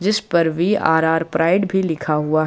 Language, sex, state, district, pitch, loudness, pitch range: Hindi, male, Jharkhand, Ranchi, 165 Hz, -18 LUFS, 160-190 Hz